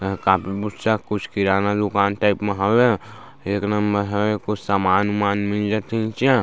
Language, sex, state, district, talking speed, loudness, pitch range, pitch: Chhattisgarhi, male, Chhattisgarh, Sarguja, 185 wpm, -21 LUFS, 100-105 Hz, 105 Hz